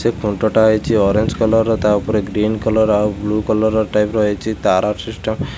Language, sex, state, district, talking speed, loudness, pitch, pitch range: Odia, male, Odisha, Khordha, 205 wpm, -16 LUFS, 110 Hz, 105-110 Hz